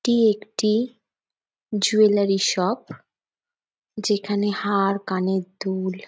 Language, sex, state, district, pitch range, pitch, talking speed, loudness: Bengali, female, West Bengal, Jhargram, 195-215 Hz, 205 Hz, 80 wpm, -22 LUFS